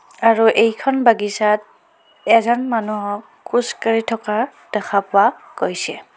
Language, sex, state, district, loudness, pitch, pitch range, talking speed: Assamese, female, Assam, Kamrup Metropolitan, -18 LUFS, 225 Hz, 210-230 Hz, 105 wpm